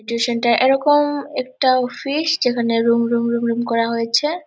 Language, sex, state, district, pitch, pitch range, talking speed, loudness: Bengali, female, West Bengal, Purulia, 240 Hz, 235-275 Hz, 160 wpm, -18 LUFS